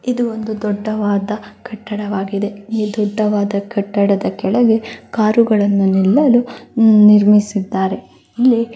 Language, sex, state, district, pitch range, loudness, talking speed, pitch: Kannada, female, Karnataka, Belgaum, 200-225 Hz, -15 LUFS, 90 wpm, 210 Hz